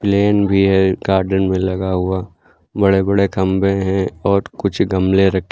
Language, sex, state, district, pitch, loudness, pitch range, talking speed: Hindi, male, Uttar Pradesh, Lucknow, 95 Hz, -16 LUFS, 95-100 Hz, 165 wpm